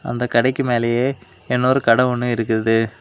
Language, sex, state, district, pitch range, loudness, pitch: Tamil, male, Tamil Nadu, Kanyakumari, 115-125 Hz, -18 LUFS, 120 Hz